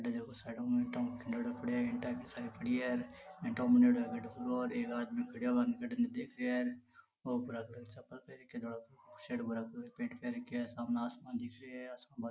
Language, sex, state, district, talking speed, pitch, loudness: Marwari, male, Rajasthan, Nagaur, 170 wpm, 190 Hz, -38 LUFS